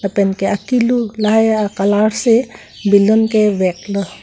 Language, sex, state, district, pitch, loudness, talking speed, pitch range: Karbi, female, Assam, Karbi Anglong, 210 Hz, -15 LUFS, 140 wpm, 200-220 Hz